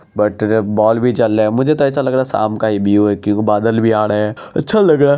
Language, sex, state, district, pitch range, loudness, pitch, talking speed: Hindi, male, Bihar, Araria, 105-130 Hz, -14 LUFS, 110 Hz, 310 wpm